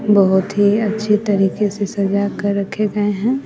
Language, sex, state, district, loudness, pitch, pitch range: Hindi, female, Bihar, West Champaran, -17 LUFS, 205 Hz, 200-210 Hz